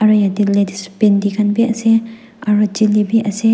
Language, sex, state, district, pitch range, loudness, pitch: Nagamese, female, Nagaland, Dimapur, 205-225 Hz, -15 LUFS, 210 Hz